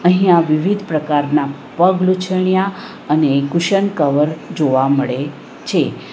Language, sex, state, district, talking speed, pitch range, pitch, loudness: Gujarati, female, Gujarat, Valsad, 100 wpm, 145-185 Hz, 155 Hz, -16 LUFS